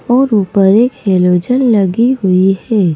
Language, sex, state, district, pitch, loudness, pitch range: Hindi, female, Madhya Pradesh, Bhopal, 205 Hz, -11 LUFS, 190-245 Hz